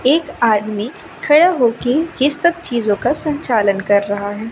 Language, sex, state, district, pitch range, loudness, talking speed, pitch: Hindi, female, Madhya Pradesh, Katni, 210-300 Hz, -16 LUFS, 160 wpm, 240 Hz